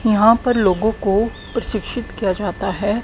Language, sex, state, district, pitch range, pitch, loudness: Hindi, female, Haryana, Jhajjar, 195-225 Hz, 210 Hz, -19 LUFS